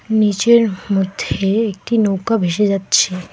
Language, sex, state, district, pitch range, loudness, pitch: Bengali, female, West Bengal, Alipurduar, 190-225 Hz, -16 LUFS, 205 Hz